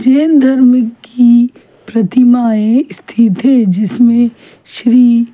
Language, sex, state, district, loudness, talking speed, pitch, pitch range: Hindi, female, Chhattisgarh, Kabirdham, -10 LUFS, 100 wpm, 240 Hz, 230-250 Hz